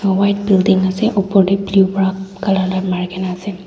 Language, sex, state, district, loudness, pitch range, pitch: Nagamese, female, Nagaland, Dimapur, -16 LUFS, 190-195 Hz, 195 Hz